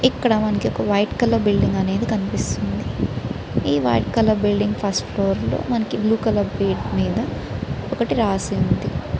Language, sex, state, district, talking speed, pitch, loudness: Telugu, female, Andhra Pradesh, Srikakulam, 150 wpm, 200 Hz, -21 LUFS